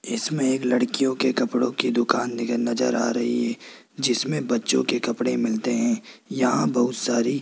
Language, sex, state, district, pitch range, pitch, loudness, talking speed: Hindi, male, Rajasthan, Jaipur, 120-125 Hz, 120 Hz, -23 LUFS, 170 wpm